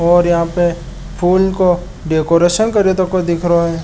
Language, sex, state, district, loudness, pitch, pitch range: Marwari, male, Rajasthan, Nagaur, -14 LUFS, 175 Hz, 170-185 Hz